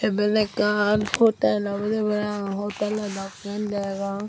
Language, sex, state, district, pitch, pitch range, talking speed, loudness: Chakma, female, Tripura, Unakoti, 210 Hz, 200-210 Hz, 110 wpm, -24 LUFS